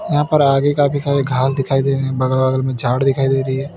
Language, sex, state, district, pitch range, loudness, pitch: Hindi, male, Uttar Pradesh, Lalitpur, 130-140 Hz, -16 LUFS, 135 Hz